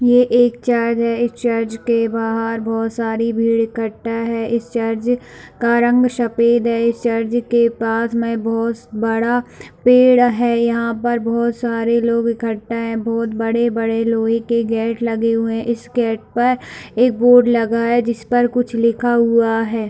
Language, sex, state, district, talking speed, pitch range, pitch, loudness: Hindi, female, Chhattisgarh, Bilaspur, 170 wpm, 230-235 Hz, 230 Hz, -17 LUFS